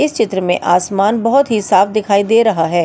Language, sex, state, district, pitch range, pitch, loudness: Hindi, female, Delhi, New Delhi, 185-225 Hz, 200 Hz, -13 LUFS